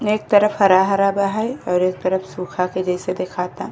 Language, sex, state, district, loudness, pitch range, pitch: Bhojpuri, female, Uttar Pradesh, Deoria, -19 LUFS, 180-200 Hz, 190 Hz